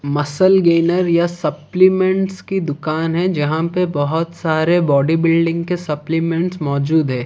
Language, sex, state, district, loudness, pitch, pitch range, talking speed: Hindi, male, Odisha, Khordha, -17 LUFS, 165 Hz, 155-180 Hz, 130 wpm